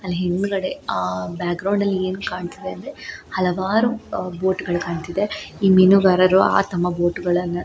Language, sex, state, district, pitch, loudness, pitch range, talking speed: Kannada, female, Karnataka, Shimoga, 185 Hz, -20 LUFS, 175-195 Hz, 165 wpm